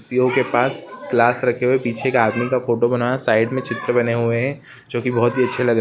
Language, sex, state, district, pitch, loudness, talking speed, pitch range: Hindi, male, Chhattisgarh, Rajnandgaon, 120 Hz, -19 LUFS, 260 wpm, 120-130 Hz